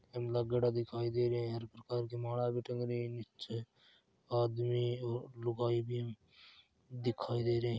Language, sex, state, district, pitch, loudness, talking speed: Marwari, male, Rajasthan, Churu, 120 Hz, -37 LUFS, 155 wpm